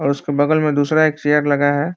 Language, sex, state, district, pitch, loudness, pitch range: Hindi, male, Bihar, Muzaffarpur, 145 Hz, -16 LUFS, 145-155 Hz